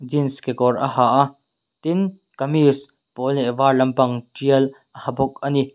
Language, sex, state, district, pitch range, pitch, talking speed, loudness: Mizo, male, Mizoram, Aizawl, 130-140 Hz, 135 Hz, 165 wpm, -20 LUFS